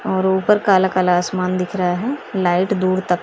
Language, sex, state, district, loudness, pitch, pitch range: Hindi, female, Maharashtra, Mumbai Suburban, -18 LUFS, 185 Hz, 180-195 Hz